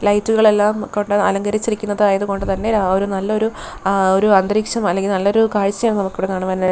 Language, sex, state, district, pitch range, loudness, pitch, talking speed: Malayalam, female, Kerala, Thiruvananthapuram, 195-215 Hz, -17 LUFS, 205 Hz, 160 wpm